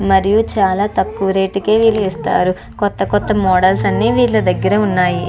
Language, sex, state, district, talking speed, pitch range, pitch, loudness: Telugu, female, Andhra Pradesh, Chittoor, 160 wpm, 190-215 Hz, 195 Hz, -15 LUFS